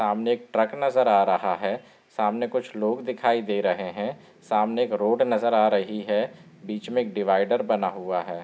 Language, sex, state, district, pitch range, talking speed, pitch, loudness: Hindi, male, Bihar, Samastipur, 105-120 Hz, 200 wpm, 110 Hz, -24 LUFS